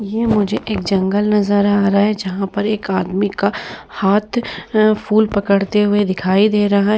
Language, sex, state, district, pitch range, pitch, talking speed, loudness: Hindi, female, Bihar, Vaishali, 200-210 Hz, 205 Hz, 190 wpm, -16 LUFS